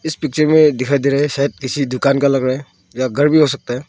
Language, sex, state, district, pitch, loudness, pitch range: Hindi, male, Arunachal Pradesh, Longding, 140 Hz, -16 LUFS, 130-150 Hz